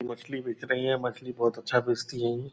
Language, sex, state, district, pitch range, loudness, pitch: Hindi, male, Bihar, Purnia, 120-130 Hz, -30 LUFS, 125 Hz